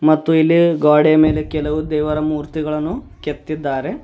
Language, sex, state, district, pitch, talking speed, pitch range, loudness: Kannada, male, Karnataka, Bidar, 155 Hz, 120 wpm, 150-155 Hz, -16 LUFS